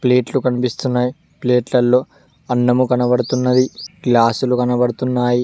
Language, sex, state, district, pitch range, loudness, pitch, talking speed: Telugu, male, Telangana, Mahabubabad, 125-130 Hz, -17 LUFS, 125 Hz, 75 wpm